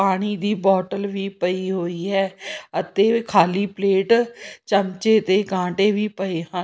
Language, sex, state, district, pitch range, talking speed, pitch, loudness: Punjabi, female, Punjab, Pathankot, 190-205 Hz, 145 wpm, 195 Hz, -21 LUFS